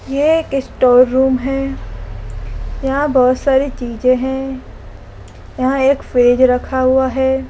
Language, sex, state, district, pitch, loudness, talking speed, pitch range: Hindi, female, Rajasthan, Jaipur, 255 Hz, -15 LUFS, 120 wpm, 245-270 Hz